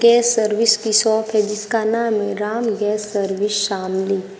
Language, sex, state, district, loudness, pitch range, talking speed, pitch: Hindi, female, Uttar Pradesh, Shamli, -18 LUFS, 205-225 Hz, 165 wpm, 210 Hz